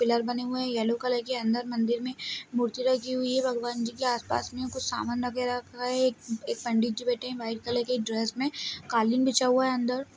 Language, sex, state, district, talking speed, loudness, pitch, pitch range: Hindi, male, Bihar, Gaya, 235 wpm, -29 LUFS, 245 Hz, 235-255 Hz